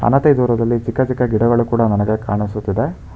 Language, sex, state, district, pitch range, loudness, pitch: Kannada, male, Karnataka, Bangalore, 105-120 Hz, -17 LUFS, 115 Hz